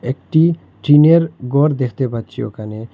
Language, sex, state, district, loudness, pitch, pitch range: Bengali, male, Assam, Hailakandi, -15 LUFS, 135 Hz, 120-155 Hz